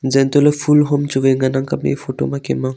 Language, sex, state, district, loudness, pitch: Wancho, male, Arunachal Pradesh, Longding, -16 LUFS, 135 Hz